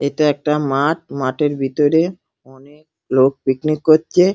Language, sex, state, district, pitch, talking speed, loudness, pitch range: Bengali, male, West Bengal, Dakshin Dinajpur, 145 Hz, 125 wpm, -17 LUFS, 135-155 Hz